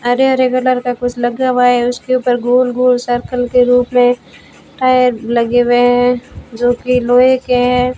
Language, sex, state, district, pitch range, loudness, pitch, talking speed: Hindi, female, Rajasthan, Bikaner, 245-250 Hz, -13 LUFS, 245 Hz, 175 wpm